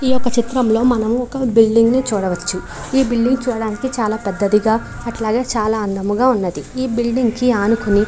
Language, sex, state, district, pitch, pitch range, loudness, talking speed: Telugu, female, Andhra Pradesh, Chittoor, 230 Hz, 210-250 Hz, -17 LUFS, 150 wpm